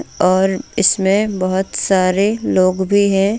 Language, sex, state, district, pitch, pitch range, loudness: Hindi, female, Jharkhand, Deoghar, 195 Hz, 185-200 Hz, -15 LUFS